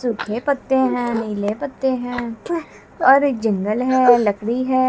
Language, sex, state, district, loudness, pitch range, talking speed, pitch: Hindi, female, Haryana, Jhajjar, -19 LUFS, 225-265 Hz, 145 wpm, 245 Hz